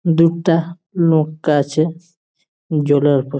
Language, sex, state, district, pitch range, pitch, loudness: Bengali, male, West Bengal, Jalpaiguri, 145-170 Hz, 160 Hz, -16 LUFS